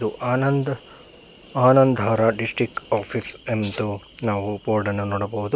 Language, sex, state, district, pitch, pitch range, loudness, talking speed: Kannada, male, Karnataka, Bangalore, 110 Hz, 105-125 Hz, -19 LUFS, 85 wpm